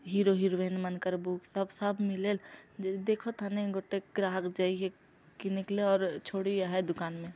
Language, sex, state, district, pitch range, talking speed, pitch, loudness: Chhattisgarhi, female, Chhattisgarh, Jashpur, 185-200 Hz, 155 wpm, 195 Hz, -33 LUFS